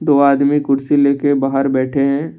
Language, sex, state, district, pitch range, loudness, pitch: Hindi, male, Assam, Kamrup Metropolitan, 135-145 Hz, -15 LUFS, 140 Hz